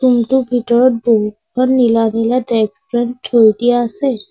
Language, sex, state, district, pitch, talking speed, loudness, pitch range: Assamese, female, Assam, Sonitpur, 240 Hz, 155 wpm, -14 LUFS, 225-250 Hz